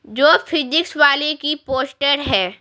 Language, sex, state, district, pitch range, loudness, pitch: Hindi, female, Bihar, Patna, 270-300 Hz, -16 LUFS, 285 Hz